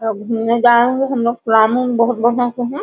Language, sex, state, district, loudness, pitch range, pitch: Hindi, female, Jharkhand, Sahebganj, -15 LUFS, 225-245 Hz, 235 Hz